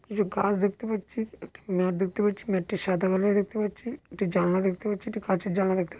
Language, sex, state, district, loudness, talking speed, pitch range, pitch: Bengali, male, West Bengal, Dakshin Dinajpur, -27 LUFS, 230 wpm, 190-210 Hz, 200 Hz